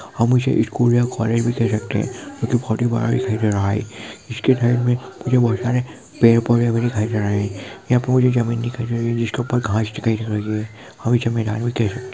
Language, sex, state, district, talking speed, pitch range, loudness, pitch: Hindi, male, Chhattisgarh, Sukma, 225 wpm, 110-120 Hz, -20 LUFS, 115 Hz